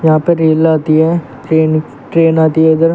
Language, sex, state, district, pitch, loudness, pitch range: Hindi, male, Uttar Pradesh, Shamli, 160 Hz, -12 LUFS, 155-165 Hz